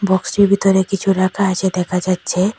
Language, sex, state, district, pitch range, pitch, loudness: Bengali, female, Assam, Hailakandi, 185-195 Hz, 190 Hz, -16 LUFS